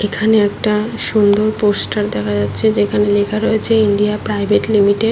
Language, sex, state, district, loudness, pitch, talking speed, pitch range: Bengali, female, West Bengal, Paschim Medinipur, -15 LUFS, 210 Hz, 150 wpm, 205-220 Hz